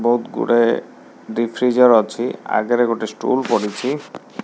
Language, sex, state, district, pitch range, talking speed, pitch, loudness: Odia, male, Odisha, Khordha, 115-125 Hz, 110 wpm, 120 Hz, -18 LUFS